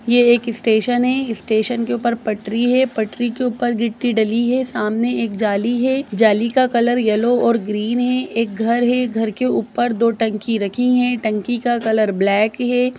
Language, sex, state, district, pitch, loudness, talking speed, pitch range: Hindi, female, Bihar, Jahanabad, 235 Hz, -18 LUFS, 190 wpm, 220-245 Hz